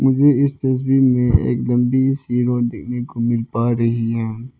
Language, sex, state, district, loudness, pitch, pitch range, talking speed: Hindi, male, Arunachal Pradesh, Lower Dibang Valley, -18 LUFS, 125 Hz, 115-130 Hz, 180 wpm